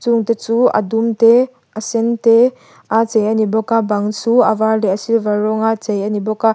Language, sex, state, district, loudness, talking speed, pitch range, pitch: Mizo, female, Mizoram, Aizawl, -15 LUFS, 245 wpm, 215-230 Hz, 225 Hz